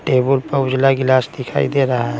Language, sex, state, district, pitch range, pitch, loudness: Hindi, male, Bihar, Patna, 130-135 Hz, 130 Hz, -17 LUFS